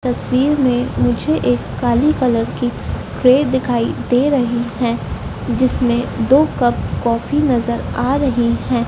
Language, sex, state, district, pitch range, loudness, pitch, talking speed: Hindi, female, Madhya Pradesh, Dhar, 235-260 Hz, -17 LUFS, 245 Hz, 135 wpm